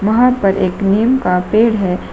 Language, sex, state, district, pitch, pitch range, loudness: Hindi, female, Uttar Pradesh, Shamli, 200 Hz, 185-225 Hz, -14 LUFS